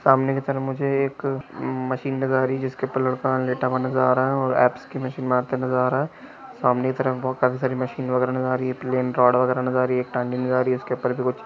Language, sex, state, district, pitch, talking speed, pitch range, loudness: Hindi, male, Karnataka, Raichur, 130 Hz, 255 wpm, 125-135 Hz, -23 LUFS